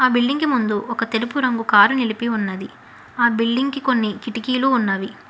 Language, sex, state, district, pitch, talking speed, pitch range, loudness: Telugu, female, Telangana, Hyderabad, 235 Hz, 170 wpm, 220-255 Hz, -19 LUFS